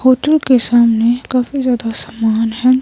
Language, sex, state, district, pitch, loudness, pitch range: Hindi, female, Himachal Pradesh, Shimla, 245 Hz, -14 LUFS, 230-255 Hz